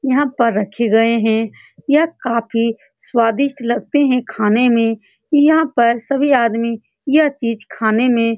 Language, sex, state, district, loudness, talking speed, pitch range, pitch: Hindi, female, Bihar, Saran, -16 LUFS, 150 wpm, 225-275 Hz, 235 Hz